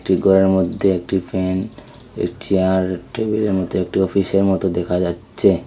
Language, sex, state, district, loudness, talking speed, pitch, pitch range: Bengali, male, Tripura, Unakoti, -19 LUFS, 150 wpm, 95 Hz, 95-100 Hz